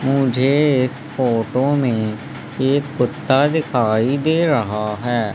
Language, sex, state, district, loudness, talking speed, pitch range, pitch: Hindi, male, Madhya Pradesh, Umaria, -18 LUFS, 110 wpm, 120-145 Hz, 130 Hz